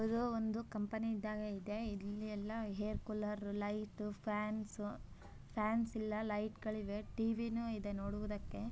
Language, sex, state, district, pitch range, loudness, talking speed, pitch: Kannada, male, Karnataka, Bellary, 205-220 Hz, -42 LUFS, 125 wpm, 215 Hz